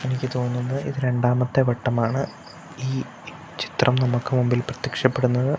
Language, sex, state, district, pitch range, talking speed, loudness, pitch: Malayalam, male, Kerala, Kasaragod, 125-130 Hz, 105 wpm, -23 LUFS, 130 Hz